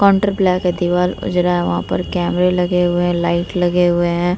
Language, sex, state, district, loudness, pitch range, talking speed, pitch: Hindi, female, Bihar, Vaishali, -16 LUFS, 175-180 Hz, 190 wpm, 175 Hz